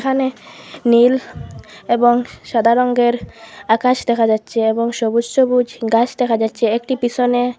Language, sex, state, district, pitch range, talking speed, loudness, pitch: Bengali, female, Assam, Hailakandi, 230-250 Hz, 125 wpm, -16 LUFS, 240 Hz